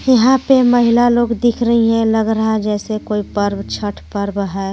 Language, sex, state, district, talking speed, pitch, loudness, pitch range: Hindi, female, Jharkhand, Garhwa, 200 wpm, 220 Hz, -15 LUFS, 205-240 Hz